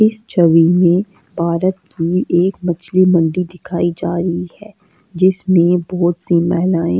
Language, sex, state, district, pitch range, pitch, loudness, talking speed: Hindi, female, Delhi, New Delhi, 170-185 Hz, 175 Hz, -15 LUFS, 135 wpm